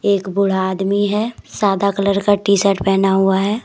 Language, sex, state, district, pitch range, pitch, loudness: Hindi, female, Jharkhand, Deoghar, 195-205 Hz, 200 Hz, -16 LUFS